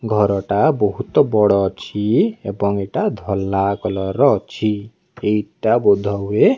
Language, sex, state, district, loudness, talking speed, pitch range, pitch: Odia, male, Odisha, Nuapada, -18 LUFS, 120 wpm, 100-105 Hz, 100 Hz